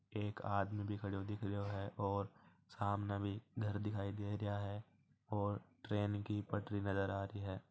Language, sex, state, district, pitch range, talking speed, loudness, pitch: Marwari, male, Rajasthan, Nagaur, 100-105 Hz, 180 wpm, -42 LUFS, 100 Hz